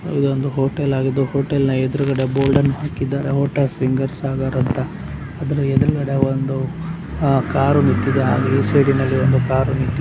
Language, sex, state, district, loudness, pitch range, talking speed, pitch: Kannada, male, Karnataka, Chamarajanagar, -18 LUFS, 135-140 Hz, 130 wpm, 135 Hz